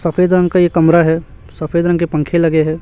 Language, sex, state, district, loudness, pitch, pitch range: Hindi, male, Chhattisgarh, Raipur, -13 LUFS, 170 Hz, 160-175 Hz